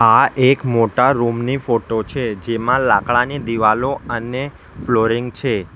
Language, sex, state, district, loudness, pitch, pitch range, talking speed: Gujarati, male, Gujarat, Valsad, -17 LUFS, 120 Hz, 115-130 Hz, 135 wpm